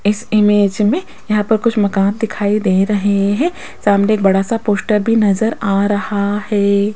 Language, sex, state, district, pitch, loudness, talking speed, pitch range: Hindi, female, Rajasthan, Jaipur, 210 Hz, -15 LUFS, 170 wpm, 200-215 Hz